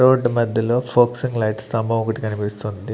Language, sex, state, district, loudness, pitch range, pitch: Telugu, male, Andhra Pradesh, Annamaya, -20 LUFS, 110-120 Hz, 115 Hz